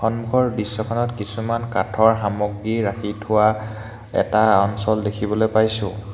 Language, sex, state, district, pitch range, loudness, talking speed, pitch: Assamese, male, Assam, Hailakandi, 105-110 Hz, -20 LUFS, 110 wpm, 110 Hz